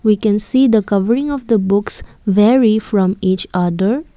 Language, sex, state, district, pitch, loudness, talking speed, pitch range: English, female, Assam, Kamrup Metropolitan, 210 Hz, -15 LUFS, 175 wpm, 195-235 Hz